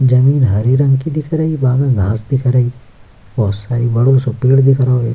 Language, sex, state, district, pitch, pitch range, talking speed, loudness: Hindi, male, Bihar, Kishanganj, 125 Hz, 115-135 Hz, 210 wpm, -14 LUFS